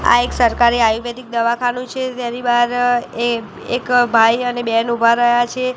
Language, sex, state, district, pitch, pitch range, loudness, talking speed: Gujarati, female, Gujarat, Gandhinagar, 240 Hz, 235-245 Hz, -16 LUFS, 165 wpm